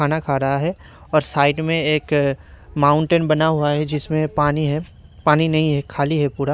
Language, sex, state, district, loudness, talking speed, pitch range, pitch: Hindi, male, Haryana, Rohtak, -19 LUFS, 200 wpm, 145-155 Hz, 150 Hz